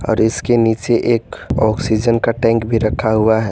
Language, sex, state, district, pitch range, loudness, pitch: Hindi, male, Jharkhand, Garhwa, 110-115 Hz, -16 LUFS, 115 Hz